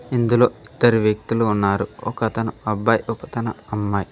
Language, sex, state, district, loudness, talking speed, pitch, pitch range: Telugu, male, Telangana, Mahabubabad, -21 LUFS, 115 wpm, 110 Hz, 105-115 Hz